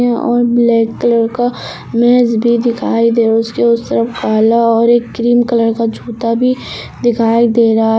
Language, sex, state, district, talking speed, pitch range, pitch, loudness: Hindi, female, Uttar Pradesh, Lucknow, 165 wpm, 230-240 Hz, 235 Hz, -12 LUFS